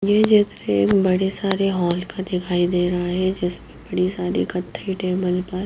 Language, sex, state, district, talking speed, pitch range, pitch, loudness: Hindi, female, Haryana, Jhajjar, 160 wpm, 180-195 Hz, 185 Hz, -21 LUFS